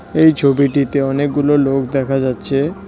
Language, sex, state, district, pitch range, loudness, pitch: Bengali, male, West Bengal, Cooch Behar, 135-145 Hz, -15 LUFS, 140 Hz